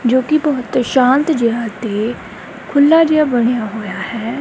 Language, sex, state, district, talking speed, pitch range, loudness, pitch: Punjabi, female, Punjab, Kapurthala, 150 wpm, 230-285 Hz, -15 LUFS, 250 Hz